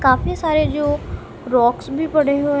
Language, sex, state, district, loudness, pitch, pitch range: Hindi, female, Punjab, Kapurthala, -18 LUFS, 290 Hz, 265-305 Hz